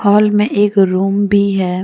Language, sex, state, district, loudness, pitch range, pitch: Hindi, female, Jharkhand, Deoghar, -13 LUFS, 195-205 Hz, 200 Hz